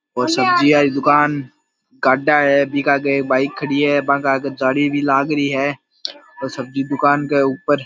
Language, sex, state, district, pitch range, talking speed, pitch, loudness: Marwari, male, Rajasthan, Nagaur, 135-145 Hz, 185 wpm, 140 Hz, -16 LUFS